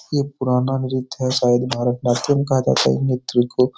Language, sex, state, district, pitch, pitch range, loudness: Hindi, male, Bihar, Jahanabad, 130 Hz, 125-135 Hz, -19 LUFS